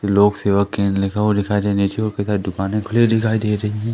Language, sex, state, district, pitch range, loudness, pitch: Hindi, male, Madhya Pradesh, Katni, 100-105 Hz, -18 LUFS, 105 Hz